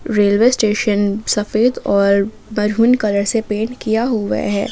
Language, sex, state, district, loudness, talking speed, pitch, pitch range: Hindi, female, Jharkhand, Palamu, -16 LUFS, 140 wpm, 215 Hz, 205-225 Hz